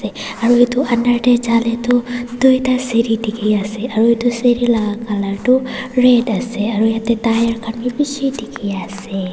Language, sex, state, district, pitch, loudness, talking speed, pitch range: Nagamese, female, Nagaland, Dimapur, 235 Hz, -16 LUFS, 155 wpm, 220-245 Hz